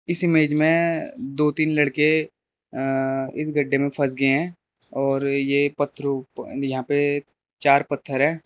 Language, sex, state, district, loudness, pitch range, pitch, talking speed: Hindi, male, Arunachal Pradesh, Lower Dibang Valley, -21 LUFS, 135-150 Hz, 145 Hz, 150 wpm